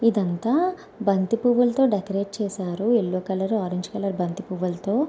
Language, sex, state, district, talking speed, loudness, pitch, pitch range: Telugu, female, Andhra Pradesh, Anantapur, 130 wpm, -24 LUFS, 200 Hz, 185-230 Hz